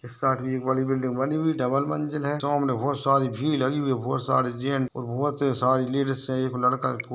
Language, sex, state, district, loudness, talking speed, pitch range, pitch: Hindi, male, Bihar, Purnia, -25 LUFS, 245 wpm, 130-140 Hz, 135 Hz